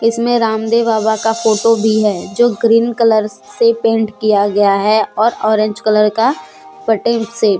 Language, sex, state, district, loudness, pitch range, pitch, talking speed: Hindi, female, Jharkhand, Deoghar, -13 LUFS, 210-230 Hz, 220 Hz, 160 wpm